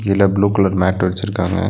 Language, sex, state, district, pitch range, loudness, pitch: Tamil, male, Tamil Nadu, Nilgiris, 95-100 Hz, -16 LUFS, 100 Hz